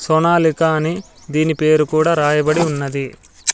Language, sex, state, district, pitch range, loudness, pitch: Telugu, male, Andhra Pradesh, Sri Satya Sai, 150-160 Hz, -16 LUFS, 155 Hz